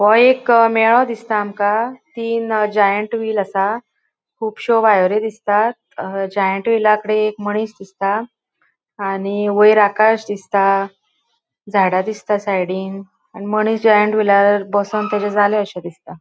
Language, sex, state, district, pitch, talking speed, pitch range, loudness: Konkani, female, Goa, North and South Goa, 210 Hz, 120 wpm, 200-220 Hz, -16 LUFS